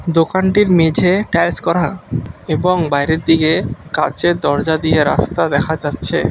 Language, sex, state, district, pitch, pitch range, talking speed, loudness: Bengali, male, West Bengal, Alipurduar, 165 Hz, 160-180 Hz, 125 wpm, -15 LUFS